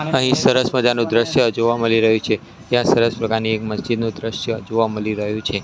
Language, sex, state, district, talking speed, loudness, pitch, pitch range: Gujarati, male, Gujarat, Gandhinagar, 200 wpm, -18 LUFS, 115 Hz, 110-120 Hz